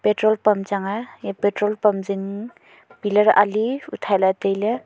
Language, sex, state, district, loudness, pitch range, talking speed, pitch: Wancho, female, Arunachal Pradesh, Longding, -21 LUFS, 200-215 Hz, 150 wpm, 210 Hz